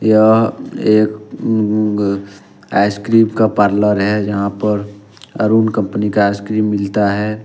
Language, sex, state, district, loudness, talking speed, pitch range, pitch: Hindi, male, Jharkhand, Ranchi, -15 LUFS, 115 wpm, 100-110 Hz, 105 Hz